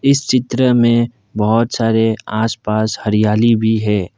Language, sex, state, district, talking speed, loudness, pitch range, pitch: Hindi, male, Assam, Kamrup Metropolitan, 130 wpm, -15 LUFS, 105-120 Hz, 110 Hz